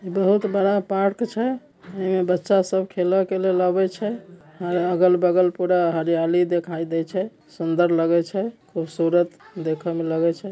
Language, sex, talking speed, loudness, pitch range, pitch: Maithili, male, 135 wpm, -22 LUFS, 170-195 Hz, 180 Hz